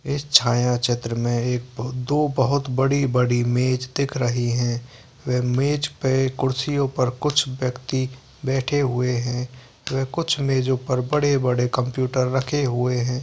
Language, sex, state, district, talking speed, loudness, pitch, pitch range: Hindi, male, Bihar, Begusarai, 145 wpm, -22 LUFS, 130 Hz, 125-135 Hz